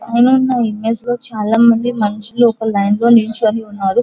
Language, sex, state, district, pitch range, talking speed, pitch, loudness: Telugu, female, Andhra Pradesh, Guntur, 215-240 Hz, 180 wpm, 225 Hz, -14 LUFS